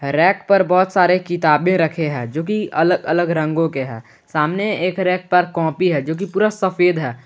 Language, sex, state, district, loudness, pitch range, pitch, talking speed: Hindi, male, Jharkhand, Garhwa, -17 LUFS, 155-185 Hz, 175 Hz, 190 wpm